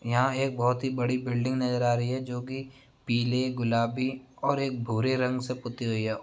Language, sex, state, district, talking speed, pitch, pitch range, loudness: Hindi, male, Bihar, Darbhanga, 200 wpm, 125 Hz, 120-130 Hz, -29 LUFS